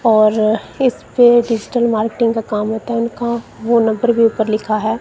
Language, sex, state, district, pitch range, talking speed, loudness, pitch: Hindi, female, Punjab, Kapurthala, 215-235 Hz, 190 wpm, -16 LUFS, 230 Hz